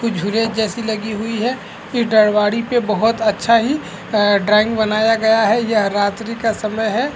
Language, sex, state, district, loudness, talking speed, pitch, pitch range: Hindi, male, Chhattisgarh, Korba, -17 LUFS, 195 wpm, 220 Hz, 210-230 Hz